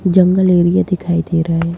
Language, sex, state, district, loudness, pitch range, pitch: Kumaoni, female, Uttarakhand, Tehri Garhwal, -14 LUFS, 170-185 Hz, 175 Hz